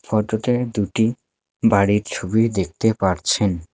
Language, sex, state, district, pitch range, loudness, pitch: Bengali, male, West Bengal, Alipurduar, 95-110 Hz, -20 LUFS, 105 Hz